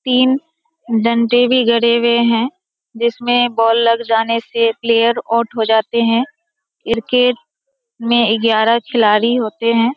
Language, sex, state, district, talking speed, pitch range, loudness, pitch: Hindi, female, Bihar, Kishanganj, 130 wpm, 230-250 Hz, -15 LUFS, 235 Hz